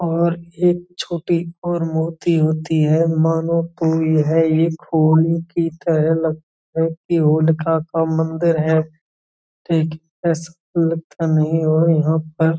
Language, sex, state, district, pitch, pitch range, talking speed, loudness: Hindi, male, Uttar Pradesh, Budaun, 160 Hz, 160-165 Hz, 85 wpm, -18 LUFS